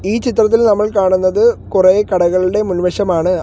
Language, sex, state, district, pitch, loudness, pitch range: Malayalam, male, Kerala, Kollam, 190 Hz, -13 LUFS, 185-215 Hz